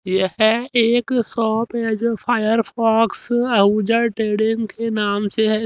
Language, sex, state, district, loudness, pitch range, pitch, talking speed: Hindi, male, Haryana, Rohtak, -18 LUFS, 215-235 Hz, 225 Hz, 140 wpm